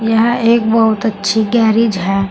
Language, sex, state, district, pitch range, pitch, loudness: Hindi, female, Uttar Pradesh, Saharanpur, 210-230 Hz, 225 Hz, -13 LUFS